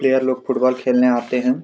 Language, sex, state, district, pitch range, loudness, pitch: Hindi, male, Jharkhand, Jamtara, 125-130 Hz, -18 LUFS, 130 Hz